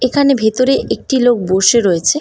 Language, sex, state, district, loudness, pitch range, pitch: Bengali, female, West Bengal, Malda, -13 LUFS, 200-265 Hz, 245 Hz